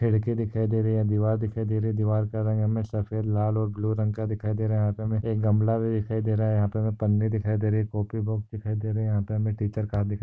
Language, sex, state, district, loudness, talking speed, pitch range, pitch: Hindi, male, Maharashtra, Solapur, -26 LUFS, 305 wpm, 105-110 Hz, 110 Hz